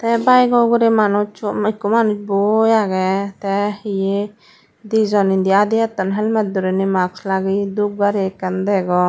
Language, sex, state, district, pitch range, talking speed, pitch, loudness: Chakma, female, Tripura, Dhalai, 195-215 Hz, 150 wpm, 205 Hz, -17 LUFS